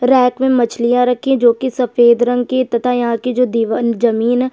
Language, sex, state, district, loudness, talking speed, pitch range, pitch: Hindi, female, Chhattisgarh, Sukma, -14 LUFS, 250 wpm, 235-250 Hz, 245 Hz